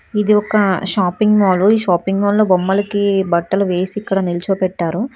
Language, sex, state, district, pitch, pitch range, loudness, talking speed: Telugu, female, Telangana, Hyderabad, 195 Hz, 185-210 Hz, -16 LUFS, 140 wpm